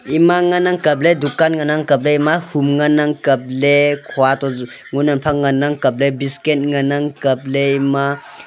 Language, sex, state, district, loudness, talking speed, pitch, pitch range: Wancho, male, Arunachal Pradesh, Longding, -16 LUFS, 155 wpm, 145 Hz, 140-150 Hz